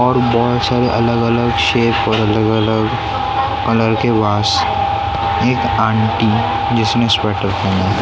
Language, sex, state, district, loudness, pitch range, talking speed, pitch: Hindi, male, Maharashtra, Mumbai Suburban, -15 LUFS, 105-115 Hz, 140 wpm, 115 Hz